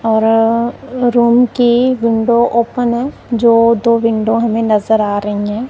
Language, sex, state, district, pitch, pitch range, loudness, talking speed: Hindi, male, Punjab, Kapurthala, 230 Hz, 225-240 Hz, -13 LUFS, 145 wpm